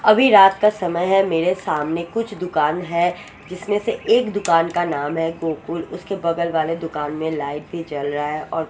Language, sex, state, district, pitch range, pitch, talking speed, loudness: Hindi, female, Odisha, Sambalpur, 160-195 Hz, 170 Hz, 200 wpm, -20 LUFS